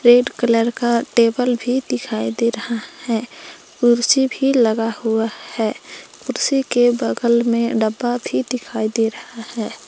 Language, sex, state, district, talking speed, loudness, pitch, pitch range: Hindi, female, Jharkhand, Palamu, 145 wpm, -18 LUFS, 235 Hz, 225-250 Hz